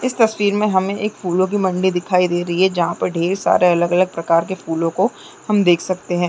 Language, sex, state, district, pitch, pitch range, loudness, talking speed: Chhattisgarhi, female, Chhattisgarh, Jashpur, 185 Hz, 175-195 Hz, -18 LUFS, 240 wpm